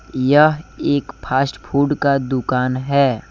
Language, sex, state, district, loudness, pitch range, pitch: Hindi, male, Jharkhand, Deoghar, -18 LUFS, 130-145 Hz, 140 Hz